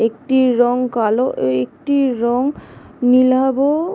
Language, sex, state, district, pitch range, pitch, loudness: Bengali, female, West Bengal, Jhargram, 245-270 Hz, 255 Hz, -16 LUFS